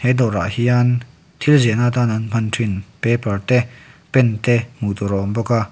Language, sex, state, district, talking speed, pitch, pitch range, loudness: Mizo, male, Mizoram, Aizawl, 200 wpm, 120 Hz, 110-125 Hz, -18 LUFS